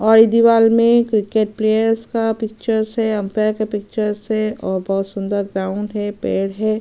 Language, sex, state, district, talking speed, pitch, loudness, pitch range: Hindi, female, Chhattisgarh, Sukma, 175 wpm, 215 Hz, -18 LUFS, 205-225 Hz